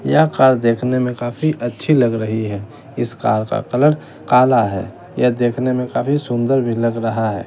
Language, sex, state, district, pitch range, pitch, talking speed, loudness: Hindi, male, Bihar, West Champaran, 115-130 Hz, 120 Hz, 195 wpm, -17 LUFS